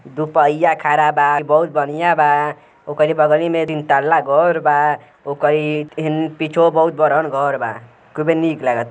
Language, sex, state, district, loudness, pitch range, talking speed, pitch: Hindi, male, Uttar Pradesh, Gorakhpur, -16 LUFS, 145-160 Hz, 160 wpm, 150 Hz